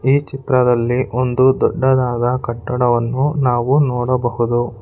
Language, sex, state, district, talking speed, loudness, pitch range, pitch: Kannada, male, Karnataka, Bangalore, 85 wpm, -16 LUFS, 120-130 Hz, 125 Hz